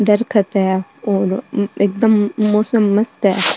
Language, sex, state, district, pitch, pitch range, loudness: Marwari, female, Rajasthan, Nagaur, 205 Hz, 200-215 Hz, -16 LUFS